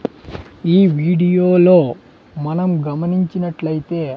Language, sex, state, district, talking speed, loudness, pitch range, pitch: Telugu, male, Andhra Pradesh, Sri Satya Sai, 70 wpm, -16 LUFS, 160-180 Hz, 175 Hz